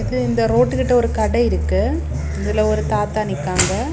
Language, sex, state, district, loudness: Tamil, female, Tamil Nadu, Kanyakumari, -18 LUFS